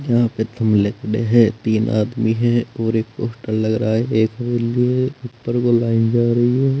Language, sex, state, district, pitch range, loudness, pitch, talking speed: Hindi, male, Uttar Pradesh, Saharanpur, 110-120 Hz, -18 LUFS, 115 Hz, 205 wpm